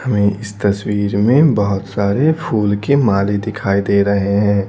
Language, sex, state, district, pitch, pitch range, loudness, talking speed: Hindi, male, Bihar, Patna, 100 Hz, 100-110 Hz, -15 LUFS, 165 wpm